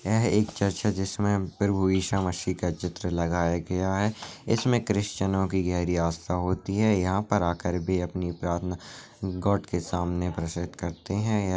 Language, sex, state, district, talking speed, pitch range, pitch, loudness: Hindi, male, Uttar Pradesh, Budaun, 170 wpm, 90-100 Hz, 95 Hz, -27 LUFS